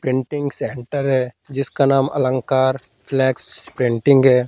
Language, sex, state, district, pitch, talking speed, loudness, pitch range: Hindi, male, Madhya Pradesh, Katni, 130 Hz, 120 wpm, -19 LUFS, 130-140 Hz